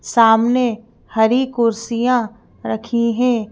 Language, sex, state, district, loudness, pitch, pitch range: Hindi, female, Madhya Pradesh, Bhopal, -17 LUFS, 230 Hz, 225-245 Hz